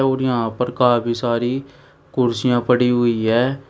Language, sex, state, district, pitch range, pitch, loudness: Hindi, male, Uttar Pradesh, Shamli, 120-130 Hz, 125 Hz, -19 LUFS